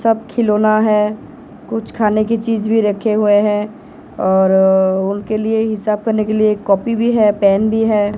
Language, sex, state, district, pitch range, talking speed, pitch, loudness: Hindi, female, Odisha, Sambalpur, 205-225 Hz, 185 wpm, 215 Hz, -15 LUFS